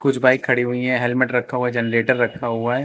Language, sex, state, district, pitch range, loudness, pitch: Hindi, male, Uttar Pradesh, Lucknow, 120-130 Hz, -19 LUFS, 125 Hz